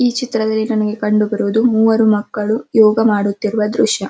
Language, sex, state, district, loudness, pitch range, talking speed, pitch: Kannada, female, Karnataka, Dharwad, -15 LUFS, 210-225 Hz, 145 wpm, 215 Hz